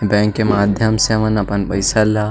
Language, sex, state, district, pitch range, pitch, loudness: Chhattisgarhi, male, Chhattisgarh, Sarguja, 100-110 Hz, 105 Hz, -16 LUFS